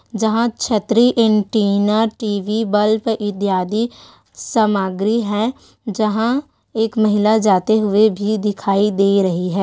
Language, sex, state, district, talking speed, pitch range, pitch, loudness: Hindi, female, Chhattisgarh, Korba, 110 wpm, 205-225 Hz, 215 Hz, -17 LUFS